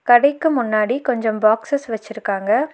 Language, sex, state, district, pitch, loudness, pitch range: Tamil, female, Tamil Nadu, Nilgiris, 240 Hz, -18 LUFS, 215-285 Hz